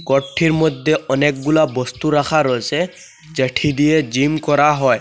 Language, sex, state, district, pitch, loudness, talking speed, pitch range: Bengali, male, Assam, Hailakandi, 150 Hz, -17 LUFS, 130 wpm, 135-155 Hz